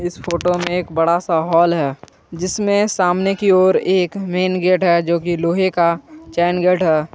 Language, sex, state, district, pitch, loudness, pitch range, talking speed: Hindi, male, Jharkhand, Garhwa, 180 Hz, -17 LUFS, 170-185 Hz, 195 wpm